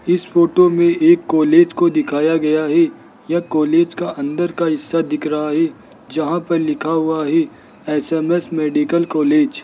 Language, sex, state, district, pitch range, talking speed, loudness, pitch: Hindi, male, Rajasthan, Jaipur, 155-175 Hz, 170 wpm, -16 LUFS, 165 Hz